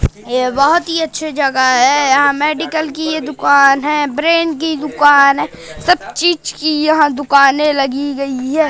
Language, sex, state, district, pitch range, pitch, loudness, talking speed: Hindi, female, Madhya Pradesh, Katni, 275-315 Hz, 295 Hz, -13 LUFS, 165 wpm